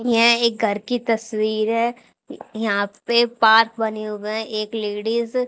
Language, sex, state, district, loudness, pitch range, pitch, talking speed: Hindi, female, Haryana, Charkhi Dadri, -20 LUFS, 215-235 Hz, 225 Hz, 165 wpm